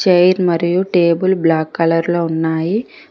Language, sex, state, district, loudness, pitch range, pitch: Telugu, female, Telangana, Mahabubabad, -15 LUFS, 165-185 Hz, 170 Hz